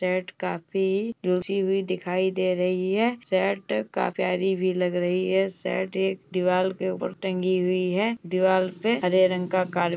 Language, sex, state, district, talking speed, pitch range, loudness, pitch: Hindi, female, Uttar Pradesh, Jalaun, 185 wpm, 180-190 Hz, -25 LUFS, 185 Hz